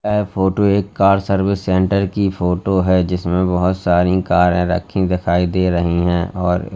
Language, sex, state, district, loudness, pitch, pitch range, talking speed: Hindi, male, Uttar Pradesh, Lalitpur, -16 LUFS, 90 Hz, 90-95 Hz, 170 wpm